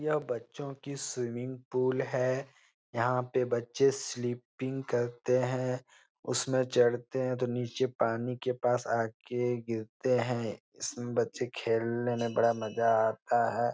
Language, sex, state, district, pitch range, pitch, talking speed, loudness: Hindi, male, Bihar, Jahanabad, 120-130 Hz, 125 Hz, 135 wpm, -32 LUFS